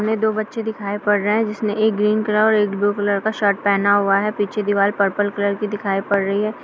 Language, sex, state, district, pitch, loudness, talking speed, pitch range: Hindi, female, Bihar, Sitamarhi, 205 Hz, -19 LUFS, 255 wpm, 200-215 Hz